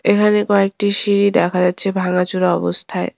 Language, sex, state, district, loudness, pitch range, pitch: Bengali, female, West Bengal, Cooch Behar, -16 LUFS, 180-205 Hz, 195 Hz